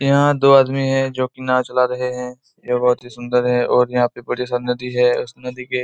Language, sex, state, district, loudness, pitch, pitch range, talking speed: Hindi, male, Chhattisgarh, Raigarh, -18 LUFS, 125 Hz, 125-130 Hz, 205 wpm